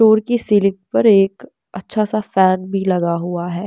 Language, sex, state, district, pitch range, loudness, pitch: Hindi, female, Bihar, West Champaran, 185-215 Hz, -16 LUFS, 195 Hz